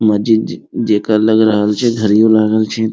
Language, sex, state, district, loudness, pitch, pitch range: Maithili, male, Bihar, Muzaffarpur, -13 LUFS, 110 Hz, 105-110 Hz